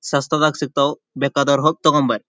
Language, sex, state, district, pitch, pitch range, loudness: Kannada, male, Karnataka, Dharwad, 140 Hz, 140-155 Hz, -18 LUFS